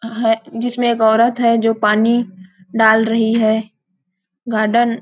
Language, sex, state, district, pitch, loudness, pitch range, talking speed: Hindi, female, Chhattisgarh, Bilaspur, 225 Hz, -15 LUFS, 215-230 Hz, 145 wpm